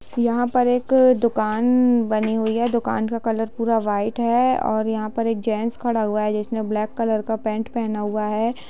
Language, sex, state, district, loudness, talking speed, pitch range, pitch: Hindi, female, Bihar, Sitamarhi, -21 LUFS, 205 wpm, 215-235 Hz, 225 Hz